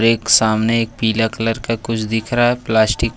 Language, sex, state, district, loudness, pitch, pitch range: Hindi, male, Jharkhand, Ranchi, -16 LUFS, 115 Hz, 110-115 Hz